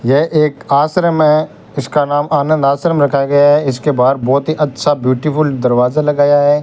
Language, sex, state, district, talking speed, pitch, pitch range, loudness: Hindi, male, Rajasthan, Bikaner, 180 wpm, 145 Hz, 140-150 Hz, -13 LUFS